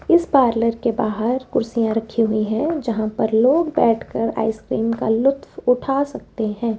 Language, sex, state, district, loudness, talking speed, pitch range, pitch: Hindi, female, Rajasthan, Jaipur, -20 LUFS, 160 wpm, 220-260 Hz, 230 Hz